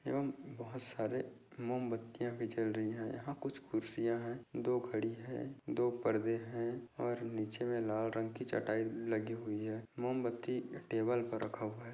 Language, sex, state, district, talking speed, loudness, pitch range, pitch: Hindi, male, Chhattisgarh, Korba, 170 wpm, -39 LUFS, 110-125 Hz, 115 Hz